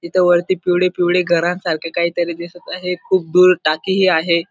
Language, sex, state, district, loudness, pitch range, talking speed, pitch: Marathi, male, Maharashtra, Dhule, -16 LUFS, 170-180 Hz, 160 wpm, 175 Hz